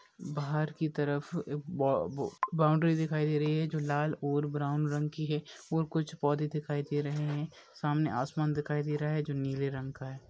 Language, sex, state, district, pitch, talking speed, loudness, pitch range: Hindi, male, Bihar, Darbhanga, 150 Hz, 205 wpm, -33 LUFS, 145-155 Hz